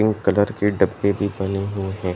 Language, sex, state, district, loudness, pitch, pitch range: Hindi, male, Bihar, East Champaran, -21 LUFS, 100 Hz, 95-105 Hz